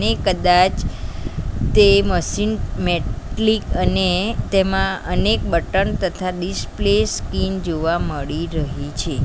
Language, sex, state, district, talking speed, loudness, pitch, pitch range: Gujarati, female, Gujarat, Valsad, 105 wpm, -19 LUFS, 180 Hz, 140-190 Hz